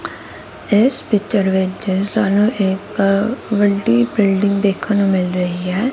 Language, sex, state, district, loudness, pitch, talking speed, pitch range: Punjabi, female, Punjab, Kapurthala, -16 LUFS, 200 Hz, 120 wpm, 190-215 Hz